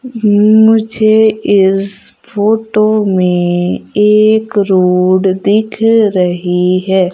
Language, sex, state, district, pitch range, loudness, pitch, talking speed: Hindi, female, Madhya Pradesh, Umaria, 185-220 Hz, -10 LUFS, 205 Hz, 75 wpm